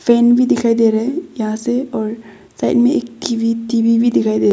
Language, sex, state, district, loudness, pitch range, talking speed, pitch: Hindi, female, Arunachal Pradesh, Longding, -16 LUFS, 220-240 Hz, 225 wpm, 230 Hz